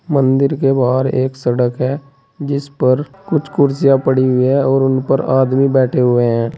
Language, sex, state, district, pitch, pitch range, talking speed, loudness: Hindi, male, Uttar Pradesh, Saharanpur, 135 Hz, 130-140 Hz, 180 wpm, -15 LUFS